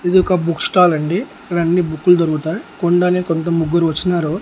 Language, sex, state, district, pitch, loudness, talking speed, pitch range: Telugu, male, Andhra Pradesh, Annamaya, 175 Hz, -16 LUFS, 175 wpm, 165-180 Hz